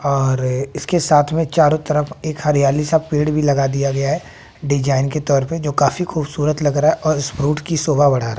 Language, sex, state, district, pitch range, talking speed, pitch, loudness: Hindi, male, Bihar, West Champaran, 140-155 Hz, 230 wpm, 150 Hz, -17 LUFS